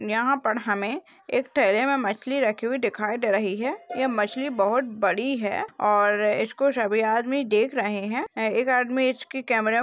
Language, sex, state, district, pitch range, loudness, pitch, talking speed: Hindi, female, Rajasthan, Nagaur, 210-265 Hz, -24 LUFS, 235 Hz, 190 wpm